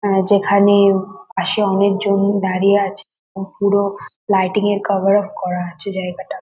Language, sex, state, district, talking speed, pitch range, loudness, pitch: Bengali, female, West Bengal, North 24 Parganas, 140 wpm, 190-200 Hz, -17 LUFS, 195 Hz